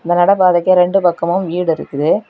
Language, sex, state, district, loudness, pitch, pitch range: Tamil, female, Tamil Nadu, Kanyakumari, -14 LUFS, 175 Hz, 170-185 Hz